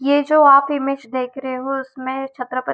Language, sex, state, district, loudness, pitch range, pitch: Hindi, female, Maharashtra, Nagpur, -18 LUFS, 260-275 Hz, 270 Hz